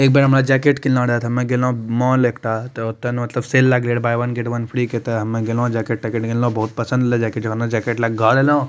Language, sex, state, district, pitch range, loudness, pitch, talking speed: Maithili, male, Bihar, Madhepura, 115-125 Hz, -18 LUFS, 120 Hz, 230 wpm